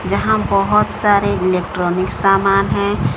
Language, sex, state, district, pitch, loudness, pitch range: Hindi, female, Odisha, Sambalpur, 195 Hz, -15 LUFS, 185-200 Hz